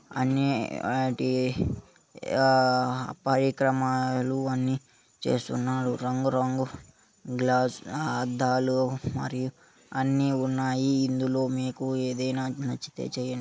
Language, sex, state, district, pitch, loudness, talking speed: Telugu, male, Telangana, Karimnagar, 130 Hz, -27 LUFS, 75 wpm